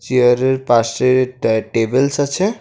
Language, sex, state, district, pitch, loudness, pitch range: Bengali, male, Assam, Kamrup Metropolitan, 130 Hz, -16 LUFS, 120-135 Hz